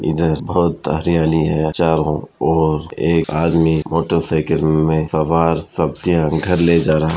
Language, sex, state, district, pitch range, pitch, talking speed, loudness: Hindi, male, Bihar, Vaishali, 80-85 Hz, 80 Hz, 150 wpm, -17 LUFS